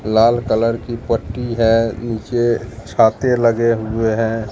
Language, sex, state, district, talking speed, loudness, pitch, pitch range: Hindi, male, Bihar, Katihar, 135 wpm, -17 LUFS, 115 Hz, 110-120 Hz